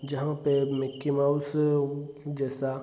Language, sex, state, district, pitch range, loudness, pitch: Hindi, male, Bihar, Darbhanga, 135-145 Hz, -28 LUFS, 140 Hz